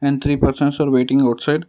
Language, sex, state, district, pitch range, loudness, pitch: English, male, Karnataka, Bangalore, 135-145 Hz, -17 LUFS, 140 Hz